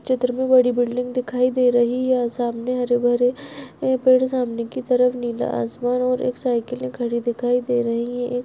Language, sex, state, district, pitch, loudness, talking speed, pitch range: Hindi, female, Chhattisgarh, Balrampur, 245 Hz, -21 LUFS, 185 wpm, 245-255 Hz